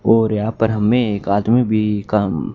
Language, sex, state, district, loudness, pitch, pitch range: Hindi, male, Haryana, Charkhi Dadri, -17 LUFS, 110 Hz, 105-115 Hz